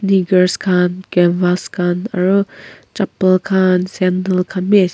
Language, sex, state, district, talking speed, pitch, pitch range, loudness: Nagamese, female, Nagaland, Kohima, 135 wpm, 185 Hz, 180-190 Hz, -15 LUFS